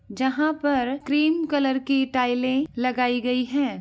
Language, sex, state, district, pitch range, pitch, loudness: Hindi, female, Uttar Pradesh, Ghazipur, 250-285 Hz, 265 Hz, -23 LUFS